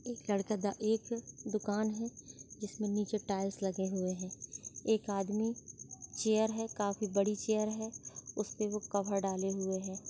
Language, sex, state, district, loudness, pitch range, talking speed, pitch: Hindi, female, Chhattisgarh, Sarguja, -36 LUFS, 195-220 Hz, 155 wpm, 210 Hz